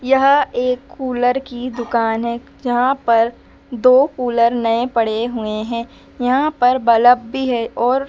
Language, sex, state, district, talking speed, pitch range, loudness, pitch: Hindi, female, Madhya Pradesh, Dhar, 150 wpm, 235-255 Hz, -17 LUFS, 245 Hz